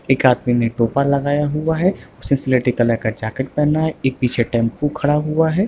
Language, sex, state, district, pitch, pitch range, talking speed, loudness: Hindi, male, Bihar, Sitamarhi, 135 Hz, 120-150 Hz, 220 wpm, -18 LUFS